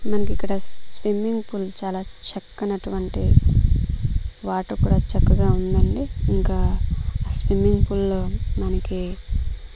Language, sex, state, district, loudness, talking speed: Telugu, female, Andhra Pradesh, Manyam, -23 LUFS, 110 wpm